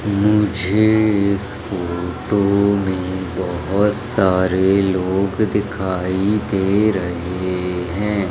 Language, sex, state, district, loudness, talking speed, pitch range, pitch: Hindi, male, Madhya Pradesh, Umaria, -18 LUFS, 80 wpm, 95-105 Hz, 100 Hz